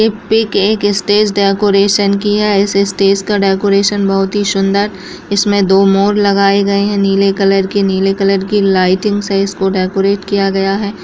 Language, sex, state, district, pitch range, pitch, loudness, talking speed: Hindi, female, Bihar, Kishanganj, 195-205 Hz, 200 Hz, -12 LUFS, 180 wpm